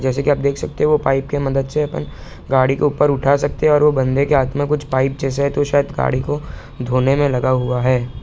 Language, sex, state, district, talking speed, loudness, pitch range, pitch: Hindi, male, Bihar, Sitamarhi, 270 wpm, -17 LUFS, 130-145 Hz, 135 Hz